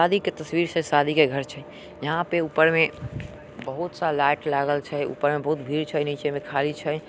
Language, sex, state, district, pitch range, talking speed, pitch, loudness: Angika, male, Bihar, Samastipur, 145-160 Hz, 210 wpm, 150 Hz, -24 LUFS